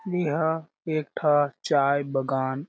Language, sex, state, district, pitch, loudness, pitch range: Chhattisgarhi, male, Chhattisgarh, Jashpur, 145 Hz, -25 LUFS, 135-160 Hz